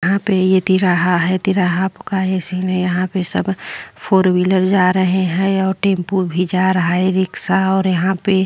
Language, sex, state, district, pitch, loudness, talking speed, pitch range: Hindi, female, Uttar Pradesh, Jyotiba Phule Nagar, 185 Hz, -16 LUFS, 190 wpm, 180-190 Hz